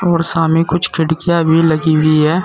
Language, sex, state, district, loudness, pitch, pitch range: Hindi, male, Uttar Pradesh, Saharanpur, -13 LUFS, 165 Hz, 160-170 Hz